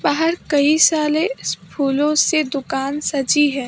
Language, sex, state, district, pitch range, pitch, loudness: Hindi, male, Maharashtra, Mumbai Suburban, 280-310 Hz, 295 Hz, -18 LUFS